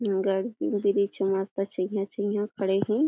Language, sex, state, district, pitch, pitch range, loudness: Chhattisgarhi, female, Chhattisgarh, Jashpur, 200 Hz, 195-205 Hz, -27 LUFS